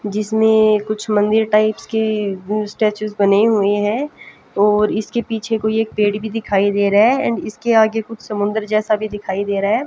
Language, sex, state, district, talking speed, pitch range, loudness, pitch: Hindi, female, Haryana, Jhajjar, 190 wpm, 205-220 Hz, -17 LUFS, 215 Hz